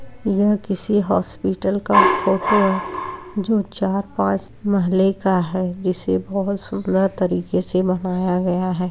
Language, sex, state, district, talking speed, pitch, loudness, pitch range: Hindi, female, Uttar Pradesh, Muzaffarnagar, 135 wpm, 185 Hz, -20 LUFS, 180-200 Hz